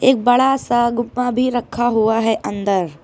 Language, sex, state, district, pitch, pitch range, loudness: Hindi, female, Uttar Pradesh, Lucknow, 240 Hz, 220-250 Hz, -17 LUFS